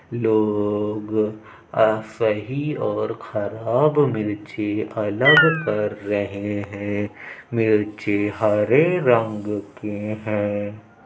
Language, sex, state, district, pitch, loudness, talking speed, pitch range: Hindi, male, Uttar Pradesh, Budaun, 105 Hz, -21 LUFS, 80 wpm, 105-110 Hz